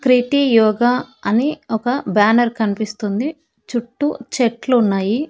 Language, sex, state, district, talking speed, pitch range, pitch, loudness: Telugu, female, Andhra Pradesh, Annamaya, 90 wpm, 220-260 Hz, 240 Hz, -18 LUFS